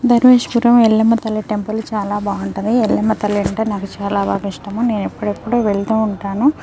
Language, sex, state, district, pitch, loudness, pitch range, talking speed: Telugu, female, Telangana, Nalgonda, 215 Hz, -16 LUFS, 205-230 Hz, 145 wpm